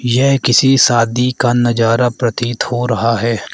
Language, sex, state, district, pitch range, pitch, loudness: Hindi, male, Arunachal Pradesh, Lower Dibang Valley, 115-125 Hz, 120 Hz, -13 LUFS